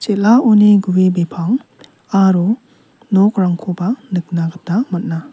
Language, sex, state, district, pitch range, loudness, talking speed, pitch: Garo, male, Meghalaya, South Garo Hills, 180-215 Hz, -15 LUFS, 90 wpm, 190 Hz